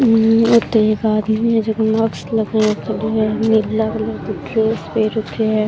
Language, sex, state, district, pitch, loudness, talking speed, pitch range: Rajasthani, female, Rajasthan, Churu, 220 Hz, -17 LUFS, 180 wpm, 215-225 Hz